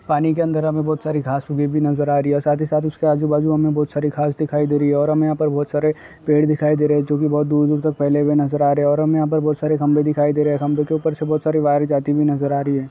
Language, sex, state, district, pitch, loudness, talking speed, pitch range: Hindi, male, Uttar Pradesh, Deoria, 150 Hz, -18 LUFS, 345 wpm, 145-155 Hz